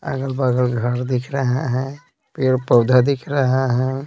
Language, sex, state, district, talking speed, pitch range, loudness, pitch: Hindi, male, Bihar, Patna, 160 wpm, 125-135 Hz, -19 LUFS, 130 Hz